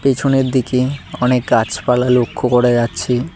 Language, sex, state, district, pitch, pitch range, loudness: Bengali, male, West Bengal, Cooch Behar, 125 Hz, 125-135 Hz, -16 LUFS